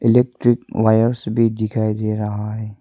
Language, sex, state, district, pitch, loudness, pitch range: Hindi, male, Arunachal Pradesh, Lower Dibang Valley, 110 Hz, -19 LUFS, 110-115 Hz